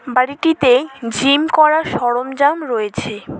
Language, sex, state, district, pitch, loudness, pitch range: Bengali, female, West Bengal, Cooch Behar, 265 Hz, -15 LUFS, 245-305 Hz